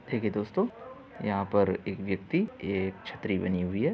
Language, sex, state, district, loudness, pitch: Hindi, male, Uttar Pradesh, Muzaffarnagar, -31 LUFS, 105 Hz